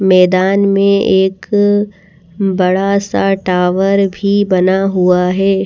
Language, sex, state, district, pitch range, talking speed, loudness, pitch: Hindi, female, Madhya Pradesh, Bhopal, 185-200 Hz, 105 wpm, -12 LUFS, 195 Hz